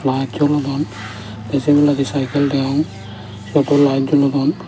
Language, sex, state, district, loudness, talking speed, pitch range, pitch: Chakma, male, Tripura, Dhalai, -17 LUFS, 130 wpm, 110-145 Hz, 140 Hz